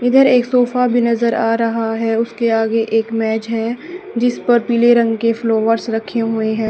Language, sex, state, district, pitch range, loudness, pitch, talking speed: Hindi, female, Haryana, Charkhi Dadri, 225-240 Hz, -16 LUFS, 230 Hz, 190 wpm